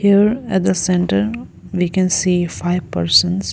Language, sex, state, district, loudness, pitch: English, female, Arunachal Pradesh, Lower Dibang Valley, -17 LUFS, 180 Hz